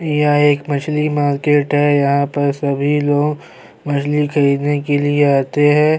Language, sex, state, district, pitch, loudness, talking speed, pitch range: Urdu, male, Bihar, Saharsa, 145 Hz, -15 LUFS, 160 wpm, 140-150 Hz